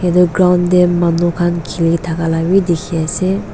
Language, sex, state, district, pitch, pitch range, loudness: Nagamese, female, Nagaland, Dimapur, 175 Hz, 165-180 Hz, -14 LUFS